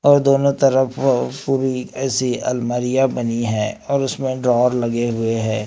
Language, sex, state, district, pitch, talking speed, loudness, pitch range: Hindi, male, Maharashtra, Gondia, 125 Hz, 150 wpm, -19 LUFS, 120-135 Hz